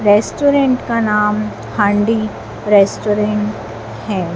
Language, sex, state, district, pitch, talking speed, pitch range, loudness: Hindi, female, Madhya Pradesh, Dhar, 210 Hz, 80 wpm, 205-220 Hz, -15 LUFS